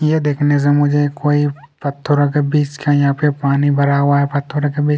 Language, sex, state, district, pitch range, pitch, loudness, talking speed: Hindi, male, Chhattisgarh, Kabirdham, 140-145 Hz, 145 Hz, -16 LUFS, 230 wpm